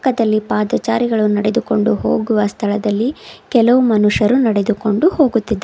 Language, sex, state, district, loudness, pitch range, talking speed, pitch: Kannada, female, Karnataka, Bidar, -15 LUFS, 210-240 Hz, 95 wpm, 220 Hz